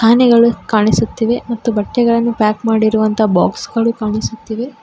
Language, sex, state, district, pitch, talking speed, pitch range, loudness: Kannada, female, Karnataka, Koppal, 230 Hz, 110 wpm, 215-235 Hz, -14 LUFS